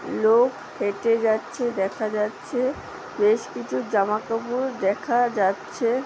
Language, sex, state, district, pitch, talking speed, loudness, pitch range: Bengali, female, West Bengal, Paschim Medinipur, 220 Hz, 110 wpm, -24 LUFS, 205-240 Hz